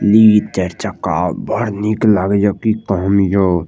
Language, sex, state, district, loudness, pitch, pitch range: Maithili, male, Bihar, Madhepura, -15 LUFS, 105 Hz, 95-110 Hz